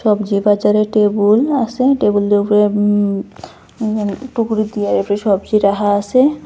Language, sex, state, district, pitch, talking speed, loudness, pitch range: Bengali, female, Assam, Hailakandi, 210 Hz, 130 wpm, -15 LUFS, 205-220 Hz